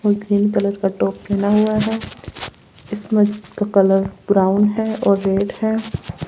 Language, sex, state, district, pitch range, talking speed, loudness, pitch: Hindi, female, Rajasthan, Jaipur, 195-210 Hz, 155 wpm, -18 LUFS, 205 Hz